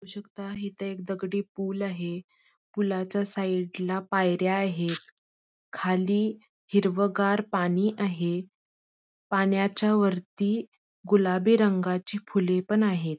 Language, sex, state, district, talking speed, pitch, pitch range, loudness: Marathi, female, Karnataka, Belgaum, 100 wpm, 195 Hz, 185-200 Hz, -27 LUFS